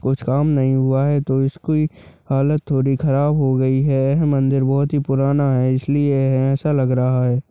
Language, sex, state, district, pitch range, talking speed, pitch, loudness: Hindi, male, Chhattisgarh, Balrampur, 130-145 Hz, 190 wpm, 135 Hz, -18 LUFS